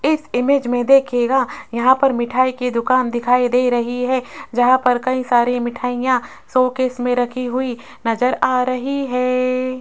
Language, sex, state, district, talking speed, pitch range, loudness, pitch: Hindi, female, Rajasthan, Jaipur, 160 wpm, 245-255 Hz, -18 LUFS, 250 Hz